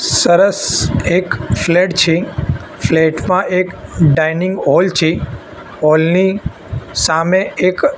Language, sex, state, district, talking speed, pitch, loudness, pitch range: Gujarati, male, Gujarat, Gandhinagar, 105 wpm, 175 Hz, -14 LUFS, 160-185 Hz